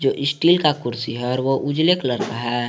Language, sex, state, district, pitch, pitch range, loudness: Hindi, male, Jharkhand, Garhwa, 135 Hz, 120-150 Hz, -20 LUFS